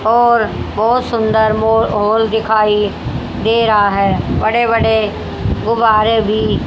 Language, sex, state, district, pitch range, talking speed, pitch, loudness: Hindi, female, Haryana, Jhajjar, 215-230 Hz, 115 wpm, 220 Hz, -14 LUFS